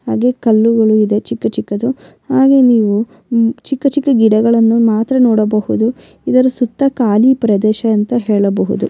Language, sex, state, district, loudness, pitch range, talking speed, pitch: Kannada, female, Karnataka, Bellary, -13 LUFS, 215-250 Hz, 120 wpm, 230 Hz